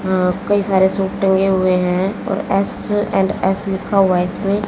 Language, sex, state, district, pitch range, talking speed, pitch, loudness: Hindi, female, Haryana, Jhajjar, 190-200 Hz, 190 wpm, 195 Hz, -17 LUFS